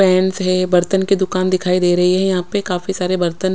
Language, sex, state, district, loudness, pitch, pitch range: Hindi, female, Odisha, Khordha, -16 LUFS, 185 Hz, 180-190 Hz